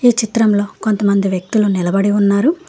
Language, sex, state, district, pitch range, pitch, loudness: Telugu, female, Telangana, Hyderabad, 200-220 Hz, 205 Hz, -15 LUFS